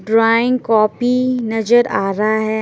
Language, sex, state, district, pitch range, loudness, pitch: Hindi, female, Bihar, Patna, 220-240 Hz, -15 LUFS, 225 Hz